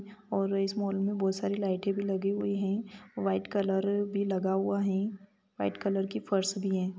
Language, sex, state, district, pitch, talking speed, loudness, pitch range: Hindi, female, Chhattisgarh, Bilaspur, 195 Hz, 230 wpm, -31 LUFS, 195-200 Hz